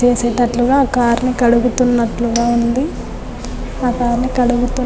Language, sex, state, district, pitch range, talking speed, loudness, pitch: Telugu, female, Telangana, Nalgonda, 240-250 Hz, 125 wpm, -15 LUFS, 245 Hz